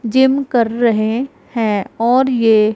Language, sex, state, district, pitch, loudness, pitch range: Hindi, female, Punjab, Pathankot, 235 Hz, -15 LUFS, 220-260 Hz